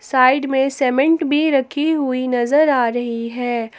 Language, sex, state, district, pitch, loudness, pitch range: Hindi, female, Jharkhand, Palamu, 265 Hz, -17 LUFS, 245-290 Hz